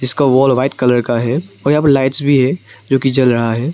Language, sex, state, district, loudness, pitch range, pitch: Hindi, male, Arunachal Pradesh, Papum Pare, -14 LUFS, 125-140 Hz, 130 Hz